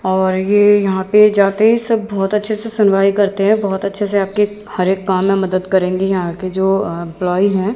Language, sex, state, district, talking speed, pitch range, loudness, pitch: Hindi, female, Haryana, Rohtak, 225 wpm, 190-205 Hz, -15 LUFS, 195 Hz